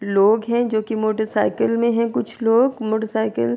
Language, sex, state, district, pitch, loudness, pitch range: Urdu, female, Andhra Pradesh, Anantapur, 220 Hz, -19 LUFS, 215-230 Hz